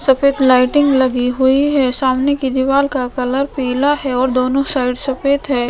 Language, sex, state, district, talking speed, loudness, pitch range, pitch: Hindi, female, Goa, North and South Goa, 180 wpm, -15 LUFS, 255-275 Hz, 265 Hz